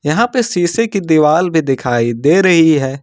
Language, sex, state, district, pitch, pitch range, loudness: Hindi, male, Jharkhand, Ranchi, 160 Hz, 140-190 Hz, -13 LUFS